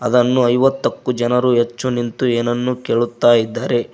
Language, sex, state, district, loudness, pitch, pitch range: Kannada, male, Karnataka, Koppal, -17 LUFS, 120 Hz, 120-125 Hz